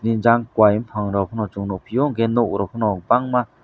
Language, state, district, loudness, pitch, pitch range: Kokborok, Tripura, West Tripura, -20 LUFS, 110 Hz, 100-120 Hz